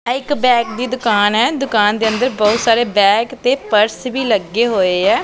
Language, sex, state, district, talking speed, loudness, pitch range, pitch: Punjabi, female, Punjab, Pathankot, 205 wpm, -15 LUFS, 210-250 Hz, 230 Hz